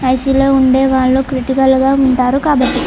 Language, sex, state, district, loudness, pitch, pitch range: Telugu, female, Andhra Pradesh, Chittoor, -12 LUFS, 265 Hz, 260-270 Hz